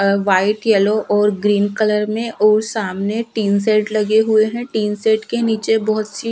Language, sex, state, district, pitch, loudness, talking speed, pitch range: Hindi, female, Bihar, Kaimur, 215 Hz, -17 LUFS, 190 wpm, 210-220 Hz